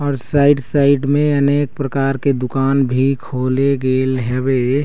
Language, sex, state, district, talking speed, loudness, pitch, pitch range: Chhattisgarhi, male, Chhattisgarh, Raigarh, 150 wpm, -16 LUFS, 135 Hz, 130-140 Hz